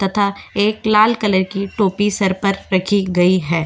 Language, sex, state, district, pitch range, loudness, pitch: Hindi, female, Goa, North and South Goa, 185-205 Hz, -17 LUFS, 195 Hz